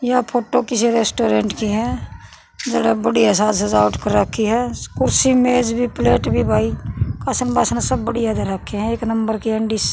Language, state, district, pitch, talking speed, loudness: Haryanvi, Haryana, Rohtak, 220 Hz, 185 wpm, -18 LUFS